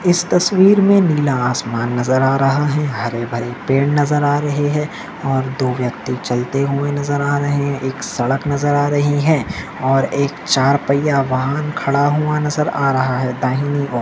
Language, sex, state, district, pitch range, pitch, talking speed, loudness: Hindi, male, Maharashtra, Solapur, 130-145 Hz, 140 Hz, 190 wpm, -17 LUFS